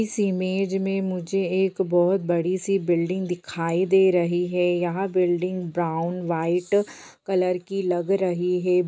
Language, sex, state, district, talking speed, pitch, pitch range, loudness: Hindi, female, Bihar, Bhagalpur, 135 wpm, 180 Hz, 175-190 Hz, -23 LUFS